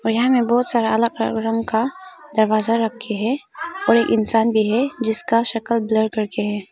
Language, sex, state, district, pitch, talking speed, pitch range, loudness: Hindi, female, Arunachal Pradesh, Papum Pare, 225 Hz, 215 wpm, 220-240 Hz, -19 LUFS